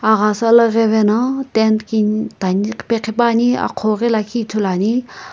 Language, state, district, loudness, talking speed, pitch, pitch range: Sumi, Nagaland, Kohima, -16 LUFS, 110 wpm, 220 Hz, 215-235 Hz